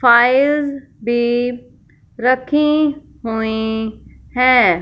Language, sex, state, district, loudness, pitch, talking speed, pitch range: Hindi, female, Punjab, Fazilka, -16 LUFS, 245 Hz, 60 wpm, 235-280 Hz